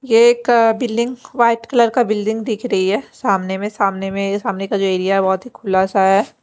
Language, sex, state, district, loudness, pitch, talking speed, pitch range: Hindi, female, Delhi, New Delhi, -17 LUFS, 210 Hz, 225 wpm, 195-235 Hz